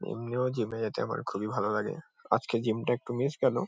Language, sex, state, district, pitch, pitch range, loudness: Bengali, male, West Bengal, Kolkata, 115 Hz, 110-120 Hz, -31 LUFS